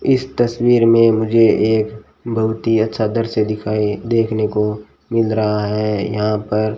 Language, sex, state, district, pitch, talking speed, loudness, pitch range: Hindi, male, Rajasthan, Bikaner, 110 Hz, 160 wpm, -17 LUFS, 105-115 Hz